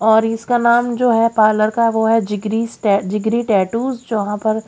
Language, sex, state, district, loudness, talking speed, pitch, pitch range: Hindi, female, Haryana, Jhajjar, -16 LUFS, 180 wpm, 225 Hz, 215-230 Hz